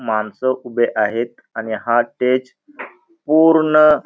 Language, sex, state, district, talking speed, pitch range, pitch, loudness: Marathi, male, Maharashtra, Pune, 120 wpm, 115-155 Hz, 125 Hz, -17 LUFS